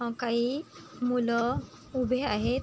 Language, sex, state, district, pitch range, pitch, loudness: Marathi, female, Maharashtra, Sindhudurg, 235-255 Hz, 245 Hz, -30 LUFS